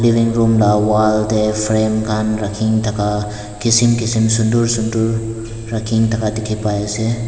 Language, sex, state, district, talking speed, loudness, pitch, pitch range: Nagamese, male, Nagaland, Dimapur, 140 wpm, -16 LUFS, 110 Hz, 105-115 Hz